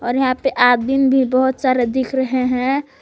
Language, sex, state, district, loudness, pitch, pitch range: Hindi, female, Jharkhand, Palamu, -17 LUFS, 260 Hz, 255-265 Hz